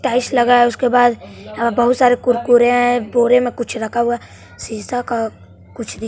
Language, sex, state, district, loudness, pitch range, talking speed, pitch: Hindi, male, Bihar, West Champaran, -15 LUFS, 235-245 Hz, 195 wpm, 240 Hz